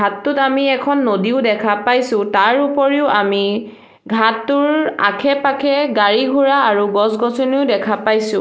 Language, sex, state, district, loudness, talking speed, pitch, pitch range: Assamese, female, Assam, Sonitpur, -15 LUFS, 115 wpm, 240 Hz, 210-275 Hz